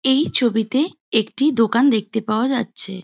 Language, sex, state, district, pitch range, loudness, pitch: Bengali, female, West Bengal, Jalpaiguri, 220-265 Hz, -19 LUFS, 230 Hz